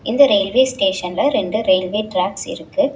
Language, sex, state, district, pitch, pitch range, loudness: Tamil, female, Tamil Nadu, Chennai, 240 Hz, 195-285 Hz, -17 LUFS